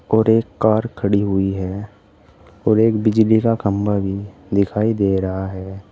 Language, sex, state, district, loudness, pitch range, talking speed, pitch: Hindi, male, Uttar Pradesh, Saharanpur, -18 LUFS, 95-110 Hz, 160 wpm, 100 Hz